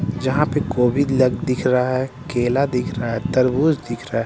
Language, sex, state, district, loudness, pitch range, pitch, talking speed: Hindi, male, Bihar, Patna, -20 LUFS, 120-140 Hz, 130 Hz, 185 wpm